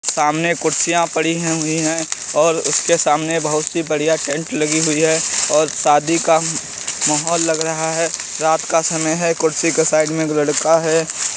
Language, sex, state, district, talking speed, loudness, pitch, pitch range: Bhojpuri, male, Uttar Pradesh, Gorakhpur, 180 wpm, -16 LUFS, 160 Hz, 155-165 Hz